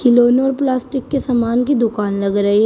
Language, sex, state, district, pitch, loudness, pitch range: Hindi, female, Uttar Pradesh, Shamli, 245 Hz, -16 LUFS, 215-265 Hz